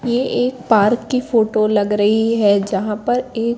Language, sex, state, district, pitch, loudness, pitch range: Hindi, female, Madhya Pradesh, Katni, 225 Hz, -17 LUFS, 210-245 Hz